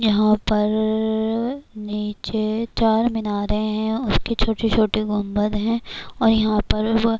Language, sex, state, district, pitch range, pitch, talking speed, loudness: Urdu, female, Bihar, Kishanganj, 210-225 Hz, 220 Hz, 135 wpm, -21 LUFS